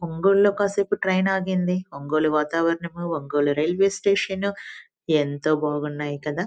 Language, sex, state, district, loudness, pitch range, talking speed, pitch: Telugu, female, Telangana, Nalgonda, -23 LUFS, 150-195 Hz, 120 wpm, 170 Hz